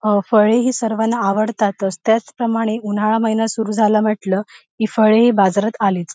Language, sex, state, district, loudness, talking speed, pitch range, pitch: Marathi, female, Maharashtra, Sindhudurg, -17 LUFS, 165 wpm, 205-225 Hz, 215 Hz